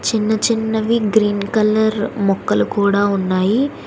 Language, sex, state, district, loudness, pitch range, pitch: Telugu, female, Telangana, Hyderabad, -17 LUFS, 200-220 Hz, 215 Hz